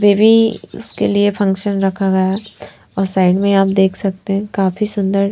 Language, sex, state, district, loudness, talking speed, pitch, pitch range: Hindi, female, Haryana, Charkhi Dadri, -15 LUFS, 180 wpm, 195 Hz, 195-205 Hz